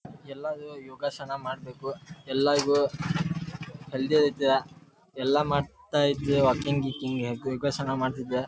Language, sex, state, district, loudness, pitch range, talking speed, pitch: Kannada, male, Karnataka, Dharwad, -28 LUFS, 135-150 Hz, 100 wpm, 140 Hz